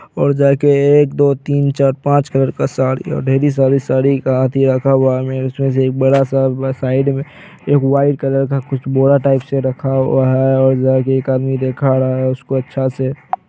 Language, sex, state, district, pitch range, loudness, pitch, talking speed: Hindi, male, Bihar, Araria, 130-140 Hz, -14 LUFS, 135 Hz, 210 wpm